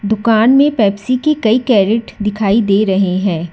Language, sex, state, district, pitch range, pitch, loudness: Hindi, female, Karnataka, Bangalore, 200-235 Hz, 215 Hz, -13 LUFS